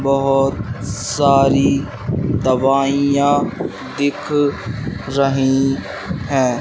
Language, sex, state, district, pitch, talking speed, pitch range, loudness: Hindi, male, Madhya Pradesh, Katni, 135 Hz, 55 wpm, 130-140 Hz, -17 LUFS